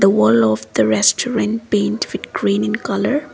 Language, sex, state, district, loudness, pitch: English, female, Assam, Kamrup Metropolitan, -17 LUFS, 200 Hz